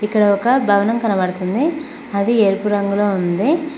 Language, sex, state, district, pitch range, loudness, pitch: Telugu, female, Telangana, Mahabubabad, 200-260 Hz, -17 LUFS, 210 Hz